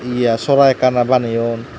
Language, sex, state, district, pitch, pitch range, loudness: Chakma, male, Tripura, Dhalai, 125 Hz, 115-130 Hz, -15 LUFS